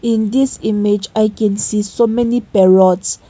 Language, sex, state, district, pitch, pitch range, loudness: English, female, Nagaland, Kohima, 215 Hz, 205-235 Hz, -14 LUFS